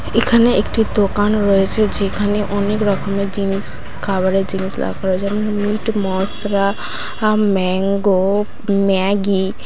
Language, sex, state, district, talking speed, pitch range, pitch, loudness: Bengali, female, West Bengal, Dakshin Dinajpur, 105 wpm, 195-210 Hz, 200 Hz, -17 LUFS